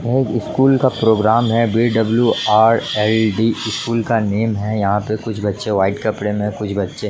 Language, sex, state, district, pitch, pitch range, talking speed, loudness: Hindi, male, Jharkhand, Jamtara, 110 Hz, 105-115 Hz, 205 wpm, -17 LUFS